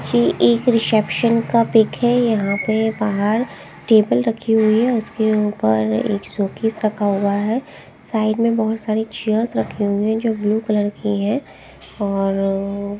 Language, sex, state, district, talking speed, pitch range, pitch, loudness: Hindi, female, Haryana, Jhajjar, 160 wpm, 200-225 Hz, 215 Hz, -18 LUFS